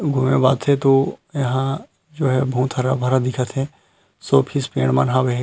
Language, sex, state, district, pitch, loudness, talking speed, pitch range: Chhattisgarhi, male, Chhattisgarh, Rajnandgaon, 130 Hz, -19 LUFS, 190 wpm, 125-140 Hz